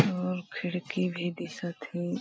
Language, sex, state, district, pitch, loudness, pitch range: Hindi, female, Chhattisgarh, Balrampur, 180 Hz, -33 LUFS, 175-180 Hz